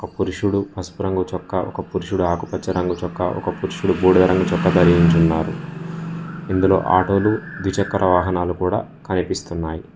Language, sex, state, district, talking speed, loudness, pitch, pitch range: Telugu, male, Telangana, Mahabubabad, 120 wpm, -20 LUFS, 95 Hz, 90-100 Hz